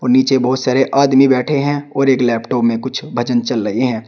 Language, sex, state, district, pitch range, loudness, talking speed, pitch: Hindi, male, Uttar Pradesh, Shamli, 120-135 Hz, -15 LUFS, 220 wpm, 130 Hz